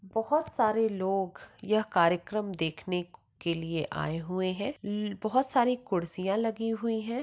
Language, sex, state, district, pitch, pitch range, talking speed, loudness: Hindi, female, Maharashtra, Pune, 205 Hz, 180-225 Hz, 150 wpm, -30 LUFS